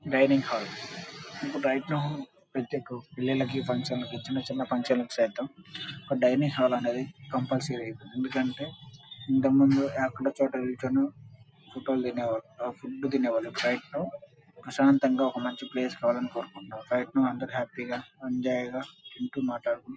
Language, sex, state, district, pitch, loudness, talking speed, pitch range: Telugu, male, Andhra Pradesh, Krishna, 130 Hz, -29 LUFS, 110 wpm, 125-140 Hz